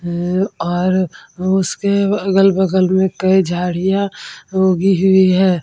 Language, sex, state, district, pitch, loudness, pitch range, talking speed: Hindi, female, Bihar, Vaishali, 190 Hz, -15 LUFS, 180-190 Hz, 105 wpm